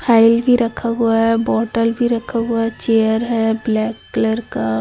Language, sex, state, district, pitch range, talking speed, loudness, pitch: Hindi, female, Chhattisgarh, Raipur, 225-235 Hz, 185 wpm, -17 LUFS, 230 Hz